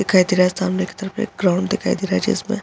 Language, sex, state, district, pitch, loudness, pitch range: Hindi, female, Bihar, Saharsa, 190 Hz, -19 LUFS, 185-205 Hz